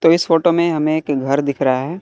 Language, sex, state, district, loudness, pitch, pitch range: Hindi, male, Bihar, West Champaran, -16 LUFS, 155 Hz, 140-170 Hz